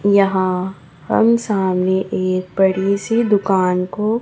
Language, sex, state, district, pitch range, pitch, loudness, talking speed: Hindi, male, Chhattisgarh, Raipur, 185-205 Hz, 190 Hz, -17 LUFS, 115 wpm